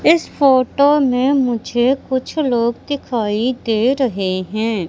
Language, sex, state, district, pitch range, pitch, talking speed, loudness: Hindi, female, Madhya Pradesh, Katni, 225-275 Hz, 250 Hz, 120 wpm, -17 LUFS